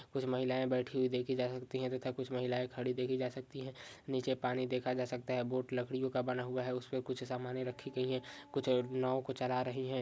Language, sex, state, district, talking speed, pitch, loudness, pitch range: Hindi, male, Maharashtra, Pune, 245 wpm, 130 Hz, -38 LUFS, 125-130 Hz